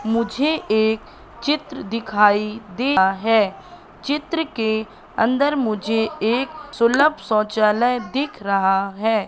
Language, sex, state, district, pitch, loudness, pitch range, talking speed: Hindi, female, Madhya Pradesh, Katni, 225 Hz, -20 LUFS, 215-275 Hz, 110 wpm